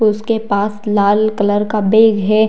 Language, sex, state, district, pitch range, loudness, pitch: Hindi, female, Bihar, Darbhanga, 205-215 Hz, -14 LUFS, 215 Hz